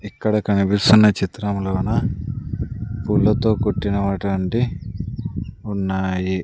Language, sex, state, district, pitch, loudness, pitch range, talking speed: Telugu, male, Andhra Pradesh, Sri Satya Sai, 105 Hz, -20 LUFS, 95-110 Hz, 65 wpm